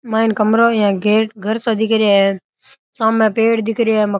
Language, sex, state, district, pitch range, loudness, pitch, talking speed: Rajasthani, male, Rajasthan, Nagaur, 210-225 Hz, -15 LUFS, 220 Hz, 230 wpm